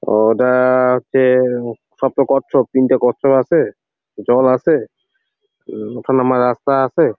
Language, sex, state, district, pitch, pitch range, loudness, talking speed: Bengali, male, West Bengal, Jalpaiguri, 130 Hz, 125-135 Hz, -15 LUFS, 125 wpm